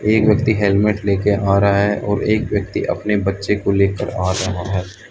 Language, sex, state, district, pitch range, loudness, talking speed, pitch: Hindi, male, Arunachal Pradesh, Lower Dibang Valley, 100-105 Hz, -17 LUFS, 210 wpm, 100 Hz